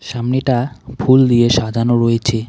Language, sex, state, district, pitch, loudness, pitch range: Bengali, male, West Bengal, Alipurduar, 120 Hz, -15 LUFS, 115-125 Hz